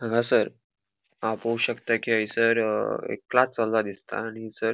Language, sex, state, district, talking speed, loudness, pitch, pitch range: Konkani, male, Goa, North and South Goa, 175 wpm, -26 LUFS, 115 Hz, 110-115 Hz